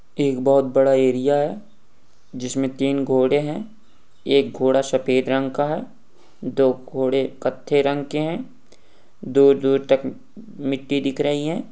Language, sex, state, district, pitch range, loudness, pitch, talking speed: Hindi, male, Uttarakhand, Tehri Garhwal, 135-145 Hz, -20 LUFS, 135 Hz, 135 wpm